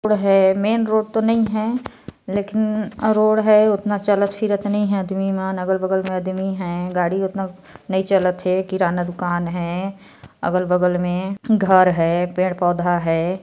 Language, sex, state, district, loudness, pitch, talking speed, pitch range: Hindi, female, Chhattisgarh, Sarguja, -19 LUFS, 190 Hz, 165 wpm, 180-210 Hz